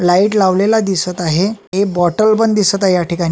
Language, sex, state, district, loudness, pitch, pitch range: Marathi, male, Maharashtra, Solapur, -14 LUFS, 190 Hz, 180-210 Hz